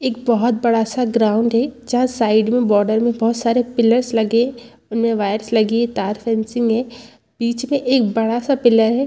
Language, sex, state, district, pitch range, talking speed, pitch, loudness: Hindi, female, Chhattisgarh, Bastar, 225-245 Hz, 180 wpm, 235 Hz, -17 LUFS